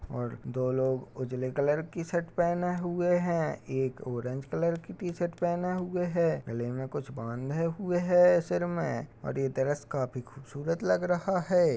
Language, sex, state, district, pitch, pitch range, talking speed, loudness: Hindi, male, Uttar Pradesh, Jalaun, 160 Hz, 130-175 Hz, 190 wpm, -30 LUFS